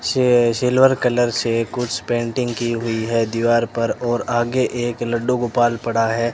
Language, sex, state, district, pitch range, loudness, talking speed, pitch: Hindi, male, Rajasthan, Bikaner, 115-125 Hz, -19 LUFS, 170 wpm, 120 Hz